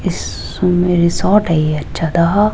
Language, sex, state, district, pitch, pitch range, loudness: Hindi, female, Rajasthan, Jaipur, 175 Hz, 165-190 Hz, -15 LUFS